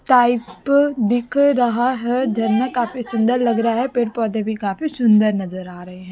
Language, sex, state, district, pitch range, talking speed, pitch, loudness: Hindi, female, Chhattisgarh, Raipur, 220-250 Hz, 185 wpm, 235 Hz, -18 LUFS